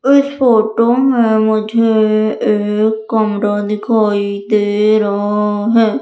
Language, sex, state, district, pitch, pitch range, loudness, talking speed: Hindi, female, Madhya Pradesh, Umaria, 215 Hz, 210-225 Hz, -13 LUFS, 100 wpm